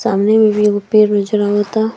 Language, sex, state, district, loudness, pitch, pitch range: Bhojpuri, female, Bihar, East Champaran, -13 LUFS, 210 Hz, 205-220 Hz